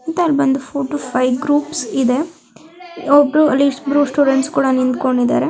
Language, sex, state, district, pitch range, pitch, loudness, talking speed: Kannada, female, Karnataka, Bellary, 265-295 Hz, 280 Hz, -16 LUFS, 130 wpm